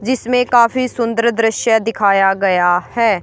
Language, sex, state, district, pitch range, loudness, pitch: Hindi, female, Haryana, Charkhi Dadri, 200-240 Hz, -14 LUFS, 230 Hz